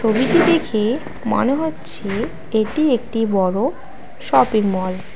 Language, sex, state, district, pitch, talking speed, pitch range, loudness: Bengali, female, West Bengal, Alipurduar, 225 Hz, 115 wpm, 205-265 Hz, -19 LUFS